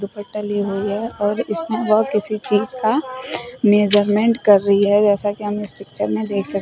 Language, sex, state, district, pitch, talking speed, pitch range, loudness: Hindi, female, Uttar Pradesh, Shamli, 205 Hz, 200 wpm, 205-215 Hz, -18 LUFS